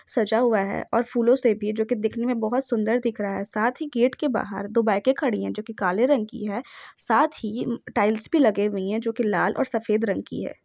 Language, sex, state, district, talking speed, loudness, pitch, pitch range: Hindi, female, Jharkhand, Sahebganj, 255 wpm, -24 LUFS, 230 Hz, 215-245 Hz